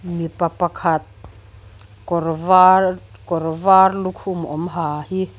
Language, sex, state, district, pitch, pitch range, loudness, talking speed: Mizo, female, Mizoram, Aizawl, 170 Hz, 150-185 Hz, -18 LUFS, 90 wpm